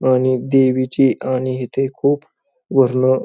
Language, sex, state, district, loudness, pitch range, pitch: Marathi, male, Maharashtra, Pune, -17 LUFS, 130-135 Hz, 130 Hz